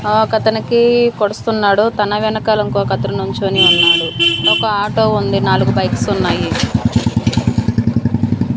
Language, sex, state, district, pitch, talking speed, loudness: Telugu, female, Andhra Pradesh, Manyam, 170 Hz, 90 wpm, -14 LUFS